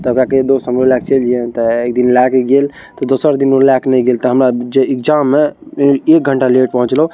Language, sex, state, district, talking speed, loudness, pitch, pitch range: Maithili, male, Bihar, Araria, 200 wpm, -12 LUFS, 130 Hz, 125-135 Hz